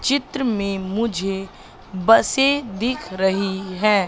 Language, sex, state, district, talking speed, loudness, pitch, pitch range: Hindi, female, Madhya Pradesh, Katni, 105 wpm, -20 LUFS, 200 Hz, 190-240 Hz